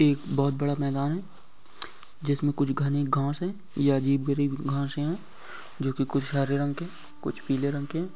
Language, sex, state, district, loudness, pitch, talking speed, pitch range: Hindi, male, Bihar, Purnia, -28 LUFS, 140 Hz, 200 wpm, 140-150 Hz